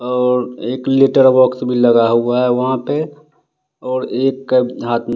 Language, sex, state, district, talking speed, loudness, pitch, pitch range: Hindi, male, Bihar, West Champaran, 175 wpm, -15 LUFS, 125 Hz, 125-135 Hz